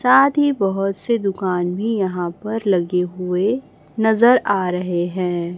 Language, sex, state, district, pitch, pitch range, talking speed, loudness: Hindi, female, Chhattisgarh, Raipur, 195 Hz, 180-225 Hz, 150 wpm, -19 LUFS